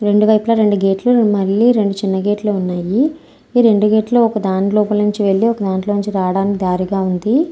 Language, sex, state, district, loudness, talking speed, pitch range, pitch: Telugu, female, Andhra Pradesh, Anantapur, -15 LUFS, 200 wpm, 195-220 Hz, 205 Hz